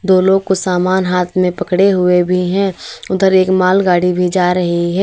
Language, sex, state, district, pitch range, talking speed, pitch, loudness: Hindi, female, Uttar Pradesh, Lalitpur, 180-190 Hz, 215 wpm, 185 Hz, -13 LUFS